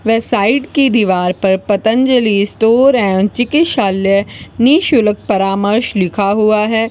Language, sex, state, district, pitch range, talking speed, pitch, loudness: Hindi, female, Rajasthan, Bikaner, 200-245 Hz, 120 wpm, 215 Hz, -13 LUFS